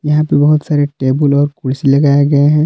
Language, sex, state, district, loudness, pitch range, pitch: Hindi, male, Jharkhand, Palamu, -12 LUFS, 140-150 Hz, 145 Hz